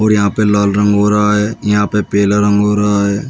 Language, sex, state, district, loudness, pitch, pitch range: Hindi, male, Uttar Pradesh, Shamli, -13 LUFS, 105 Hz, 100-105 Hz